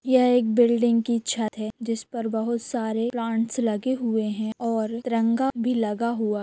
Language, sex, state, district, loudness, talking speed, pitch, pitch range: Hindi, female, Jharkhand, Sahebganj, -24 LUFS, 175 wpm, 230 Hz, 220-240 Hz